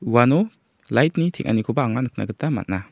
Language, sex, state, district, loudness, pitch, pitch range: Garo, male, Meghalaya, South Garo Hills, -21 LUFS, 120 Hz, 110-155 Hz